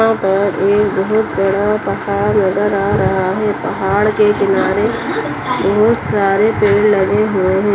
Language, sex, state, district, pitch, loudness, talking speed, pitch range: Kumaoni, female, Uttarakhand, Uttarkashi, 200 Hz, -14 LUFS, 145 wpm, 195-210 Hz